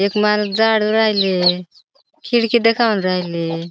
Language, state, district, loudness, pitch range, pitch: Bhili, Maharashtra, Dhule, -16 LUFS, 180-220 Hz, 210 Hz